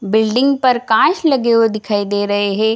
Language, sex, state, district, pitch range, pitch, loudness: Hindi, female, Bihar, Jamui, 205-250 Hz, 220 Hz, -15 LUFS